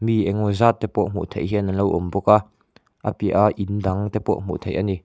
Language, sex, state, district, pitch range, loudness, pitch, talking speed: Mizo, male, Mizoram, Aizawl, 95-105 Hz, -21 LUFS, 100 Hz, 275 wpm